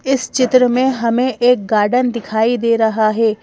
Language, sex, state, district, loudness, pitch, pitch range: Hindi, female, Madhya Pradesh, Bhopal, -15 LUFS, 235 Hz, 220-255 Hz